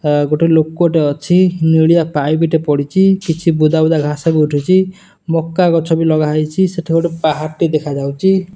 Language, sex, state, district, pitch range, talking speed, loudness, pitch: Odia, male, Odisha, Nuapada, 155-170 Hz, 155 wpm, -14 LUFS, 160 Hz